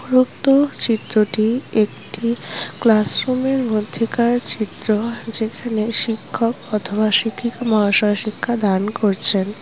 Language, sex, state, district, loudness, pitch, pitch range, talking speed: Bengali, female, West Bengal, North 24 Parganas, -19 LUFS, 225 Hz, 210-235 Hz, 100 wpm